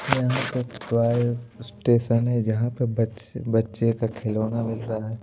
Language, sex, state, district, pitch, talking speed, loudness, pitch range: Hindi, male, Madhya Pradesh, Bhopal, 115 Hz, 160 wpm, -25 LUFS, 115-120 Hz